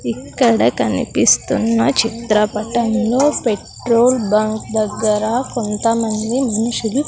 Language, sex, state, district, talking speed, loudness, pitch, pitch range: Telugu, female, Andhra Pradesh, Sri Satya Sai, 70 wpm, -16 LUFS, 230 Hz, 215-240 Hz